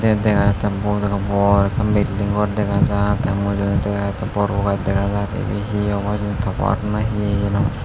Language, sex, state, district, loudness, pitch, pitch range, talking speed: Chakma, male, Tripura, Unakoti, -19 LUFS, 100 Hz, 100-105 Hz, 175 wpm